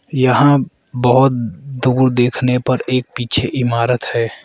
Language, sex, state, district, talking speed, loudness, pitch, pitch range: Hindi, male, Arunachal Pradesh, Lower Dibang Valley, 120 wpm, -15 LUFS, 125 Hz, 120-130 Hz